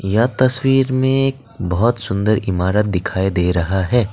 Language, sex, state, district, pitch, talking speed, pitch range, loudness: Hindi, male, Assam, Kamrup Metropolitan, 105 Hz, 160 wpm, 95-130 Hz, -17 LUFS